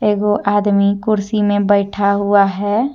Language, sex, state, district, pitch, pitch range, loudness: Hindi, female, Jharkhand, Deoghar, 205 Hz, 200-210 Hz, -15 LUFS